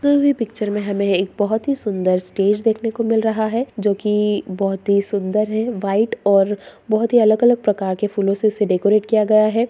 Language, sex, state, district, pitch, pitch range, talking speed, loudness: Hindi, female, Bihar, Begusarai, 210 Hz, 200-225 Hz, 215 wpm, -18 LUFS